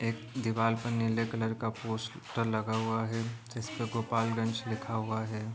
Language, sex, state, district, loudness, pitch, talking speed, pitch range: Hindi, male, Bihar, Gopalganj, -33 LUFS, 115 Hz, 150 wpm, 110-115 Hz